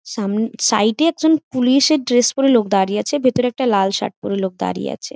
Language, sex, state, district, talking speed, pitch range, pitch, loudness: Bengali, female, West Bengal, Jhargram, 220 wpm, 205-270 Hz, 240 Hz, -17 LUFS